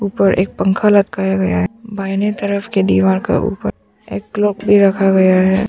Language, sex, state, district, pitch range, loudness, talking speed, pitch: Hindi, female, Arunachal Pradesh, Papum Pare, 185-205 Hz, -15 LUFS, 190 wpm, 195 Hz